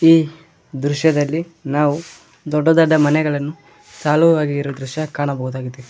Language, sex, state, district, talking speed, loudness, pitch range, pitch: Kannada, male, Karnataka, Koppal, 90 wpm, -18 LUFS, 140-160 Hz, 150 Hz